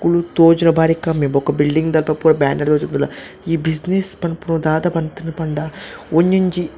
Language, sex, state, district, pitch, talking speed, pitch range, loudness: Tulu, male, Karnataka, Dakshina Kannada, 165 Hz, 160 wpm, 155-170 Hz, -17 LUFS